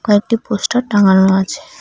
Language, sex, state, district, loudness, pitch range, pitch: Bengali, female, West Bengal, Cooch Behar, -14 LUFS, 190-230 Hz, 205 Hz